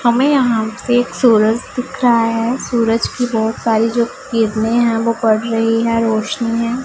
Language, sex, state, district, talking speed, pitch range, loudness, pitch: Hindi, female, Punjab, Pathankot, 175 wpm, 225-245 Hz, -15 LUFS, 230 Hz